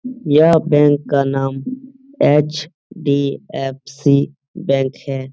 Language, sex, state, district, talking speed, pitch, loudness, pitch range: Hindi, male, Bihar, Lakhisarai, 80 wpm, 145 Hz, -16 LUFS, 135-165 Hz